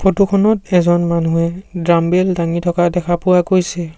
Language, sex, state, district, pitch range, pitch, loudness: Assamese, male, Assam, Sonitpur, 170-185 Hz, 175 Hz, -15 LUFS